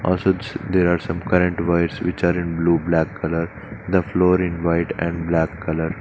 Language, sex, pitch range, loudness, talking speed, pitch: English, male, 85-90 Hz, -21 LUFS, 190 wpm, 85 Hz